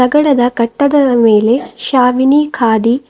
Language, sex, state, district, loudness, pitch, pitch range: Kannada, female, Karnataka, Bidar, -11 LUFS, 250 Hz, 235-285 Hz